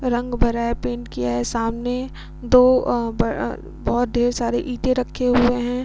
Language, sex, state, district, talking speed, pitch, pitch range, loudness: Hindi, female, Bihar, Vaishali, 175 wpm, 245 Hz, 230-250 Hz, -21 LUFS